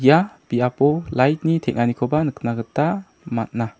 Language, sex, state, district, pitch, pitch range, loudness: Garo, male, Meghalaya, South Garo Hills, 130 Hz, 120-155 Hz, -21 LUFS